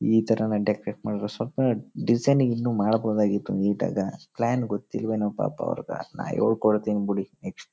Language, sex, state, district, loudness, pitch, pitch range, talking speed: Kannada, male, Karnataka, Chamarajanagar, -26 LUFS, 110 Hz, 105-115 Hz, 145 wpm